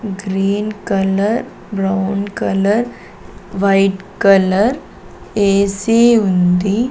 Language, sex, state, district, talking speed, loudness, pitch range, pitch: Telugu, female, Andhra Pradesh, Sri Satya Sai, 70 wpm, -15 LUFS, 195-215 Hz, 200 Hz